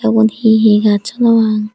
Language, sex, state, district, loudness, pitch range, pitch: Chakma, female, Tripura, Dhalai, -12 LUFS, 215-225 Hz, 220 Hz